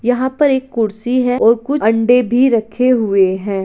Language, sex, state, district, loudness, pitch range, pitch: Hindi, female, Uttar Pradesh, Jalaun, -14 LUFS, 220-255 Hz, 245 Hz